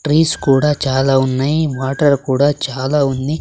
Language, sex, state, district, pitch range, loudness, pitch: Telugu, male, Andhra Pradesh, Sri Satya Sai, 135-150 Hz, -15 LUFS, 140 Hz